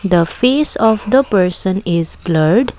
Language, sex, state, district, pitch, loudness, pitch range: English, female, Assam, Kamrup Metropolitan, 195 Hz, -14 LUFS, 175-240 Hz